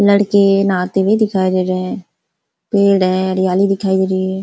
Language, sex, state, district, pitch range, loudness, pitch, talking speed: Hindi, female, Uttar Pradesh, Ghazipur, 185-200 Hz, -15 LUFS, 190 Hz, 205 wpm